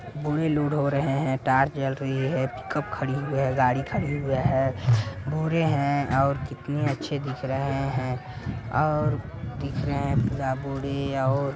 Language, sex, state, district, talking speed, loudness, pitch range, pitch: Hindi, male, Chhattisgarh, Balrampur, 165 wpm, -26 LUFS, 130-140 Hz, 135 Hz